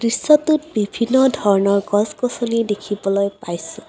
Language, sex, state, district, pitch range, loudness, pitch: Assamese, female, Assam, Kamrup Metropolitan, 200-250 Hz, -18 LUFS, 215 Hz